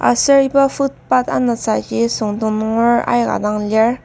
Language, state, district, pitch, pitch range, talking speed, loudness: Ao, Nagaland, Kohima, 230 Hz, 215-255 Hz, 150 wpm, -16 LUFS